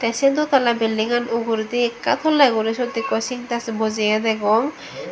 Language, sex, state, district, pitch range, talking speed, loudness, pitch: Chakma, female, Tripura, Dhalai, 220-250 Hz, 150 wpm, -20 LUFS, 230 Hz